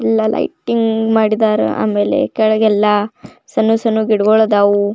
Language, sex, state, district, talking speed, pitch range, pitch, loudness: Kannada, female, Karnataka, Belgaum, 110 wpm, 205-220 Hz, 215 Hz, -14 LUFS